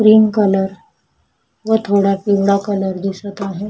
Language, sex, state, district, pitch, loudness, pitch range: Marathi, female, Maharashtra, Chandrapur, 200 Hz, -16 LUFS, 195-210 Hz